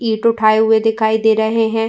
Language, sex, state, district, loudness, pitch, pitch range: Hindi, female, Uttar Pradesh, Jyotiba Phule Nagar, -14 LUFS, 220 Hz, 220-225 Hz